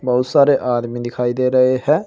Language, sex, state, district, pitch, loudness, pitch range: Hindi, male, Uttar Pradesh, Shamli, 130 Hz, -16 LUFS, 125-130 Hz